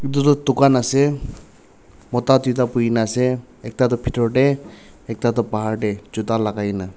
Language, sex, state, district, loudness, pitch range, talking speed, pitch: Nagamese, male, Nagaland, Dimapur, -19 LUFS, 110-135 Hz, 165 wpm, 120 Hz